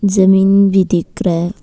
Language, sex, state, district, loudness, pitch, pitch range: Hindi, female, Arunachal Pradesh, Papum Pare, -12 LUFS, 190 Hz, 175-195 Hz